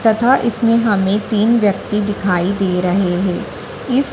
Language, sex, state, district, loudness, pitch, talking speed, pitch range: Hindi, female, Madhya Pradesh, Dhar, -16 LUFS, 210 Hz, 145 wpm, 190-230 Hz